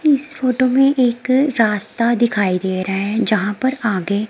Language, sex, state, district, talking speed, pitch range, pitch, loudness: Hindi, female, Himachal Pradesh, Shimla, 170 wpm, 205-260 Hz, 235 Hz, -17 LUFS